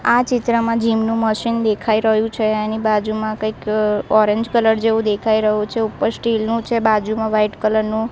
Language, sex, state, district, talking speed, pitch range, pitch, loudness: Gujarati, female, Gujarat, Gandhinagar, 185 wpm, 215-225 Hz, 220 Hz, -18 LUFS